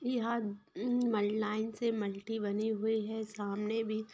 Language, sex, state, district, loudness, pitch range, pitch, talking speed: Hindi, female, Bihar, Muzaffarpur, -35 LUFS, 210-225 Hz, 220 Hz, 130 wpm